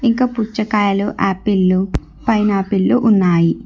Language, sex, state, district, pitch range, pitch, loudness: Telugu, female, Telangana, Hyderabad, 190-220 Hz, 205 Hz, -16 LUFS